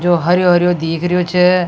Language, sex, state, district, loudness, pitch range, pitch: Rajasthani, female, Rajasthan, Nagaur, -14 LUFS, 175-180 Hz, 175 Hz